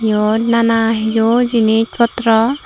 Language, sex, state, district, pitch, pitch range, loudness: Chakma, female, Tripura, Dhalai, 225 Hz, 225-235 Hz, -14 LUFS